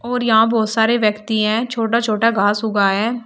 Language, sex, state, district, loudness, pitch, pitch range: Hindi, female, Uttar Pradesh, Shamli, -17 LUFS, 225 Hz, 215-230 Hz